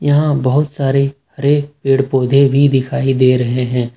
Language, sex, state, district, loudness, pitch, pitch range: Hindi, male, Jharkhand, Ranchi, -14 LUFS, 135 Hz, 130-145 Hz